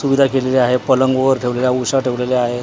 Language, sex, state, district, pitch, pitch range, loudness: Marathi, male, Maharashtra, Mumbai Suburban, 130 Hz, 125-135 Hz, -16 LUFS